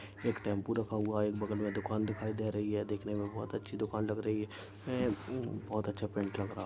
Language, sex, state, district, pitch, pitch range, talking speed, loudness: Hindi, male, Chhattisgarh, Raigarh, 105 Hz, 105-110 Hz, 225 wpm, -37 LUFS